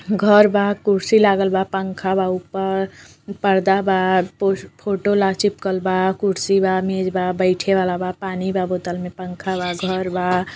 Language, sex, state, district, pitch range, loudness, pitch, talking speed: Bhojpuri, female, Uttar Pradesh, Gorakhpur, 185-195 Hz, -19 LUFS, 190 Hz, 165 wpm